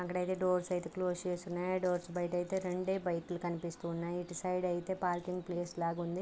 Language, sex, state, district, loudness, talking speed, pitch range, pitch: Telugu, female, Andhra Pradesh, Guntur, -37 LUFS, 200 wpm, 175-180 Hz, 180 Hz